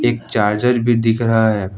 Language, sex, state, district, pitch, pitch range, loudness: Hindi, male, Jharkhand, Ranchi, 115 Hz, 105-120 Hz, -16 LUFS